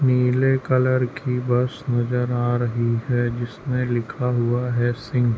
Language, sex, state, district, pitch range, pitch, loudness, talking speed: Hindi, male, Chhattisgarh, Bilaspur, 120-125 Hz, 125 Hz, -22 LUFS, 155 wpm